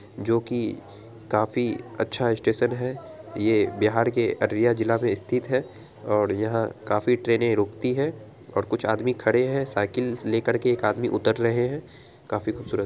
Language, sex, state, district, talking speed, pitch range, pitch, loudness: Angika, female, Bihar, Araria, 165 wpm, 110-125 Hz, 115 Hz, -24 LUFS